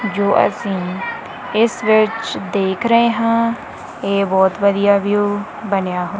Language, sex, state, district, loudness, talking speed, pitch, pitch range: Punjabi, female, Punjab, Kapurthala, -17 LUFS, 115 wpm, 205 Hz, 195-225 Hz